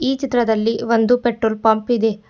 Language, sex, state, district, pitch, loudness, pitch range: Kannada, female, Karnataka, Bidar, 230 Hz, -18 LUFS, 220-245 Hz